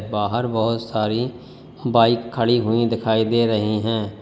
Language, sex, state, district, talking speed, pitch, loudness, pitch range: Hindi, male, Uttar Pradesh, Lalitpur, 140 wpm, 115 Hz, -20 LUFS, 110-115 Hz